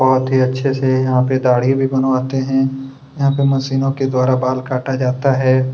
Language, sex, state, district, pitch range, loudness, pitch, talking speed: Hindi, male, Chhattisgarh, Kabirdham, 130-135 Hz, -16 LUFS, 130 Hz, 200 wpm